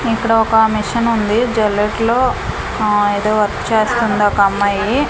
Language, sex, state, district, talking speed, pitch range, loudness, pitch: Telugu, female, Andhra Pradesh, Manyam, 130 wpm, 205-230 Hz, -15 LUFS, 215 Hz